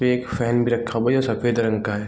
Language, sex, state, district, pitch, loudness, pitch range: Hindi, male, Bihar, East Champaran, 120 Hz, -21 LUFS, 115-120 Hz